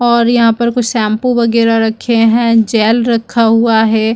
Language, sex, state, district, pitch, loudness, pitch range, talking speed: Hindi, female, Chhattisgarh, Bilaspur, 230 Hz, -11 LUFS, 225-235 Hz, 175 wpm